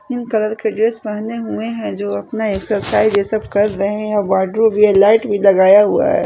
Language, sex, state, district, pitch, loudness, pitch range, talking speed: Hindi, female, Chhattisgarh, Raipur, 210 Hz, -15 LUFS, 200-220 Hz, 220 wpm